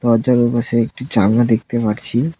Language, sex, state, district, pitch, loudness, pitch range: Bengali, male, West Bengal, Cooch Behar, 120 Hz, -16 LUFS, 115-125 Hz